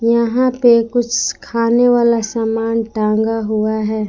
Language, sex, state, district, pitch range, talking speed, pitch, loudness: Hindi, female, Jharkhand, Palamu, 220-240 Hz, 130 wpm, 230 Hz, -15 LUFS